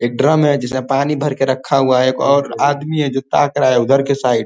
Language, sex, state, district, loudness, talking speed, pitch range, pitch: Hindi, male, Uttar Pradesh, Ghazipur, -15 LUFS, 295 wpm, 130-145 Hz, 135 Hz